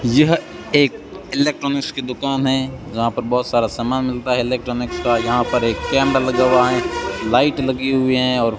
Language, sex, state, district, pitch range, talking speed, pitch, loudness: Hindi, male, Rajasthan, Bikaner, 120-135 Hz, 195 wpm, 125 Hz, -18 LUFS